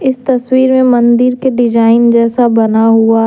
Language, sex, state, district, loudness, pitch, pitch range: Hindi, female, Jharkhand, Deoghar, -9 LUFS, 240 Hz, 230-255 Hz